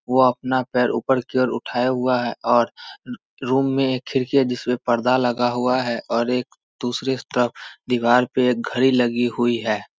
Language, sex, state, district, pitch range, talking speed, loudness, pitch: Hindi, male, Bihar, Samastipur, 120-130 Hz, 190 wpm, -21 LUFS, 125 Hz